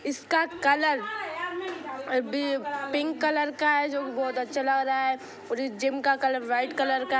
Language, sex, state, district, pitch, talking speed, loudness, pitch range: Hindi, female, Bihar, Sitamarhi, 275 Hz, 165 wpm, -27 LUFS, 265-300 Hz